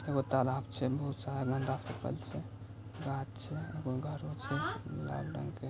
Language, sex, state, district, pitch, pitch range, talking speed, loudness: Hindi, male, Bihar, Samastipur, 130 Hz, 115-135 Hz, 170 wpm, -38 LUFS